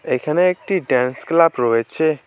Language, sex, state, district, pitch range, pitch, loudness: Bengali, male, West Bengal, Alipurduar, 125-170 Hz, 155 Hz, -18 LUFS